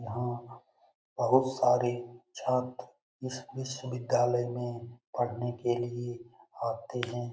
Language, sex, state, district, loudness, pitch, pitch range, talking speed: Hindi, male, Bihar, Jamui, -32 LUFS, 120 Hz, 120-125 Hz, 100 wpm